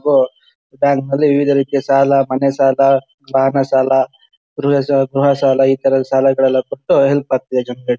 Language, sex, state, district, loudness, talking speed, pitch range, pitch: Kannada, male, Karnataka, Shimoga, -14 LUFS, 145 wpm, 135-140 Hz, 135 Hz